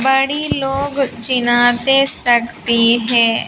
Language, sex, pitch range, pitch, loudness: Hindi, female, 235-270 Hz, 245 Hz, -14 LUFS